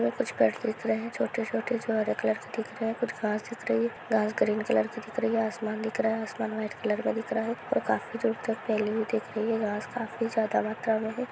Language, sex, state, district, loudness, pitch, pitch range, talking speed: Hindi, female, West Bengal, Jhargram, -29 LUFS, 220 Hz, 215-230 Hz, 245 wpm